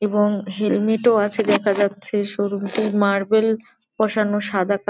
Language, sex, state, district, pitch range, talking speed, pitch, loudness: Bengali, female, West Bengal, Jalpaiguri, 200-220 Hz, 160 wpm, 210 Hz, -20 LUFS